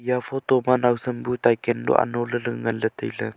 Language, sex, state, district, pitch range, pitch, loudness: Wancho, male, Arunachal Pradesh, Longding, 120-125 Hz, 120 Hz, -23 LUFS